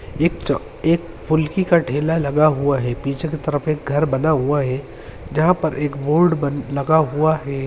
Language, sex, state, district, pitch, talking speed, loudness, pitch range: Hindi, male, Uttarakhand, Uttarkashi, 150 Hz, 195 wpm, -19 LUFS, 140-160 Hz